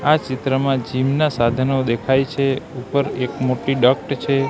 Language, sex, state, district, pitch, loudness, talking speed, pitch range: Gujarati, male, Gujarat, Gandhinagar, 135 Hz, -19 LUFS, 160 wpm, 130-140 Hz